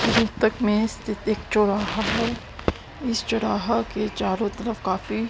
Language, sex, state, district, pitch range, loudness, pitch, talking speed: Hindi, female, Haryana, Rohtak, 210-230 Hz, -24 LUFS, 215 Hz, 125 wpm